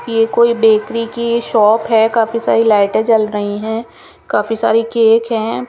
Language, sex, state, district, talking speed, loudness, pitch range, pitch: Hindi, female, Chandigarh, Chandigarh, 170 wpm, -14 LUFS, 215-230 Hz, 225 Hz